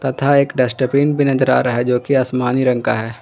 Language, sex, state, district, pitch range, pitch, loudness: Hindi, male, Jharkhand, Garhwa, 125-140 Hz, 130 Hz, -16 LUFS